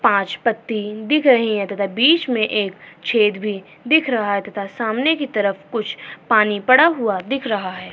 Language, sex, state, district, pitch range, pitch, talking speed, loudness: Hindi, female, Uttar Pradesh, Jyotiba Phule Nagar, 200-250 Hz, 215 Hz, 150 wpm, -18 LUFS